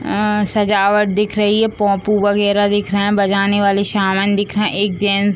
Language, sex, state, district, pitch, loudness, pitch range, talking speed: Hindi, female, Bihar, Gopalganj, 205 Hz, -15 LUFS, 200-210 Hz, 235 wpm